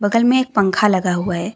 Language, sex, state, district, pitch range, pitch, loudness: Hindi, female, Jharkhand, Deoghar, 185-230 Hz, 205 Hz, -16 LUFS